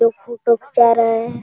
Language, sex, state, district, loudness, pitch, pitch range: Hindi, male, Bihar, Jamui, -16 LUFS, 230 Hz, 230-235 Hz